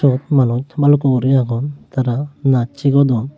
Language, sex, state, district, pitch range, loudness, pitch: Chakma, male, Tripura, Unakoti, 125-140 Hz, -16 LUFS, 135 Hz